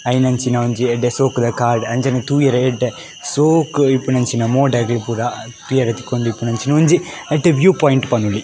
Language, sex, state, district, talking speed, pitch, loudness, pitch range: Tulu, male, Karnataka, Dakshina Kannada, 135 wpm, 125 Hz, -16 LUFS, 120-140 Hz